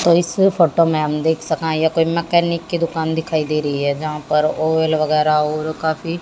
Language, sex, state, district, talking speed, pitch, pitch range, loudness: Hindi, female, Haryana, Jhajjar, 220 wpm, 160 Hz, 155-170 Hz, -18 LUFS